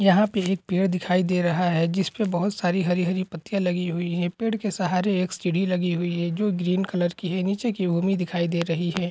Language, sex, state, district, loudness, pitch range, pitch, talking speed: Hindi, male, Bihar, East Champaran, -24 LUFS, 175-190 Hz, 180 Hz, 235 wpm